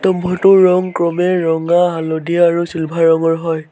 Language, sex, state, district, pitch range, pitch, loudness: Assamese, male, Assam, Sonitpur, 165-180 Hz, 170 Hz, -14 LUFS